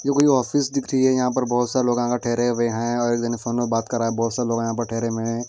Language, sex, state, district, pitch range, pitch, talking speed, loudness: Hindi, male, Delhi, New Delhi, 115-125 Hz, 120 Hz, 350 wpm, -22 LUFS